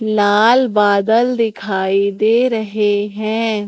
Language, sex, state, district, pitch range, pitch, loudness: Hindi, female, Madhya Pradesh, Katni, 205-225 Hz, 215 Hz, -15 LUFS